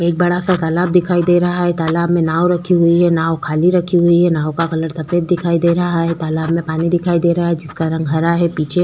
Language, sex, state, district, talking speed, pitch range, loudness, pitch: Hindi, female, Chhattisgarh, Korba, 265 wpm, 165-175 Hz, -15 LUFS, 170 Hz